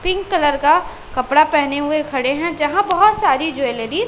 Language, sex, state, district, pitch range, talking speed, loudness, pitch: Hindi, female, Chhattisgarh, Raipur, 280-370 Hz, 190 wpm, -17 LUFS, 300 Hz